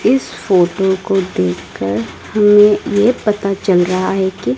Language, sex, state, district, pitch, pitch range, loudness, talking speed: Hindi, female, Odisha, Malkangiri, 190 Hz, 175-205 Hz, -14 LUFS, 130 wpm